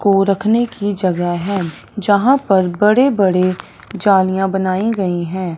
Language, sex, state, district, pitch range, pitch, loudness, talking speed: Hindi, male, Punjab, Fazilka, 185-205 Hz, 195 Hz, -16 LUFS, 140 wpm